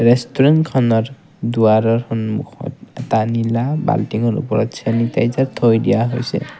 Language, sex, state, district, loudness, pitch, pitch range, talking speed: Assamese, male, Assam, Kamrup Metropolitan, -17 LUFS, 115 Hz, 115-130 Hz, 100 wpm